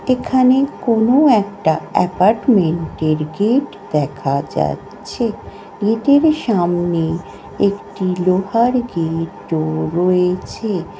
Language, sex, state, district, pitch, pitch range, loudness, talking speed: Bengali, female, West Bengal, North 24 Parganas, 190 Hz, 165-235 Hz, -17 LUFS, 85 wpm